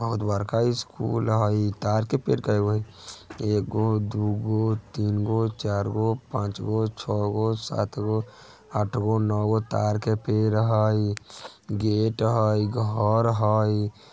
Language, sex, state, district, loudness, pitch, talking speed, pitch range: Maithili, male, Bihar, Vaishali, -25 LUFS, 110 Hz, 145 wpm, 105-110 Hz